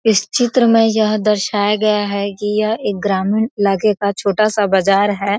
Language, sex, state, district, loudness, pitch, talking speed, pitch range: Hindi, female, Bihar, Gopalganj, -16 LUFS, 210 Hz, 180 wpm, 200-215 Hz